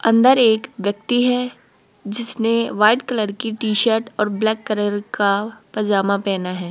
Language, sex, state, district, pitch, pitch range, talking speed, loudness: Hindi, female, Rajasthan, Jaipur, 215 Hz, 205-230 Hz, 150 wpm, -18 LUFS